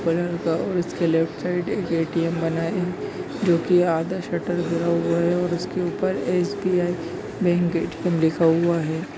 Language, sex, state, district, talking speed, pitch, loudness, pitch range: Hindi, male, Bihar, Bhagalpur, 175 wpm, 175 Hz, -23 LUFS, 165-180 Hz